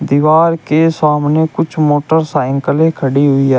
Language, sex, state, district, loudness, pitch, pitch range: Hindi, male, Uttar Pradesh, Shamli, -12 LUFS, 150 Hz, 140-160 Hz